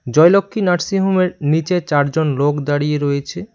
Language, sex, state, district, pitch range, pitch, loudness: Bengali, male, West Bengal, Cooch Behar, 145-185 Hz, 160 Hz, -16 LUFS